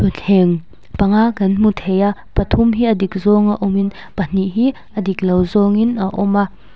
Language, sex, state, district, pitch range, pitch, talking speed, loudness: Mizo, female, Mizoram, Aizawl, 190-210 Hz, 200 Hz, 205 wpm, -16 LUFS